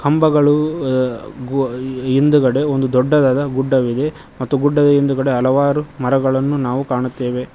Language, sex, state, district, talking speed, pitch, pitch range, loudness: Kannada, male, Karnataka, Koppal, 120 wpm, 135 Hz, 130-145 Hz, -16 LUFS